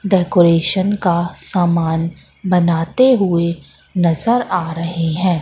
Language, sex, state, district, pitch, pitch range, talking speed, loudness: Hindi, female, Madhya Pradesh, Katni, 175 Hz, 165-190 Hz, 100 wpm, -16 LUFS